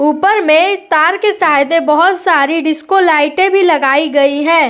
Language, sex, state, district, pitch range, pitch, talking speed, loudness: Hindi, female, Uttar Pradesh, Etah, 300-370 Hz, 325 Hz, 180 wpm, -11 LUFS